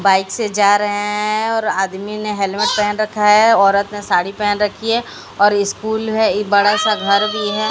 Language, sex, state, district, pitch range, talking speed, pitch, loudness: Hindi, female, Odisha, Sambalpur, 200-215 Hz, 210 wpm, 210 Hz, -16 LUFS